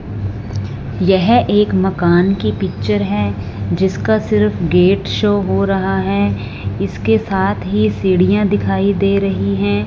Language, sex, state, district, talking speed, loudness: Hindi, female, Punjab, Fazilka, 130 wpm, -15 LUFS